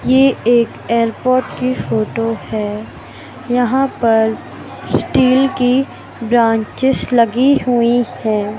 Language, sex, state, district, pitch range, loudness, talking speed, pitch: Hindi, male, Madhya Pradesh, Katni, 225-255 Hz, -15 LUFS, 100 wpm, 240 Hz